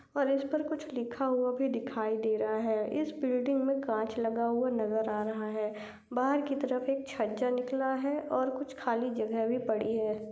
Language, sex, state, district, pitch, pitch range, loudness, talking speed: Hindi, female, Maharashtra, Chandrapur, 250 Hz, 220-270 Hz, -32 LUFS, 205 wpm